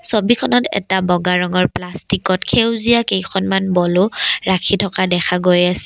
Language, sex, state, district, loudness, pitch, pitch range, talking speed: Assamese, female, Assam, Kamrup Metropolitan, -15 LUFS, 190 Hz, 180-205 Hz, 135 wpm